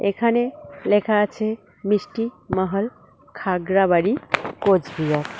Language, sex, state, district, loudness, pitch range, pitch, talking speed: Bengali, female, West Bengal, Cooch Behar, -22 LUFS, 185-220 Hz, 205 Hz, 80 wpm